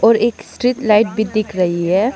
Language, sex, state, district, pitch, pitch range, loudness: Hindi, female, Arunachal Pradesh, Lower Dibang Valley, 215 Hz, 200-230 Hz, -16 LUFS